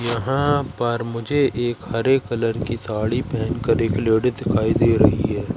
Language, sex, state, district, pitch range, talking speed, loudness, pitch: Hindi, male, Madhya Pradesh, Katni, 110-120 Hz, 175 wpm, -21 LUFS, 115 Hz